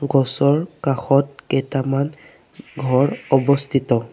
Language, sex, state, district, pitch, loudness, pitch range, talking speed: Assamese, male, Assam, Sonitpur, 135 Hz, -19 LUFS, 135-140 Hz, 75 wpm